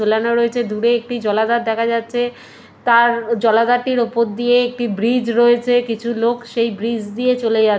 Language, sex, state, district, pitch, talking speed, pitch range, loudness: Bengali, female, West Bengal, Purulia, 235 Hz, 170 wpm, 230-240 Hz, -17 LUFS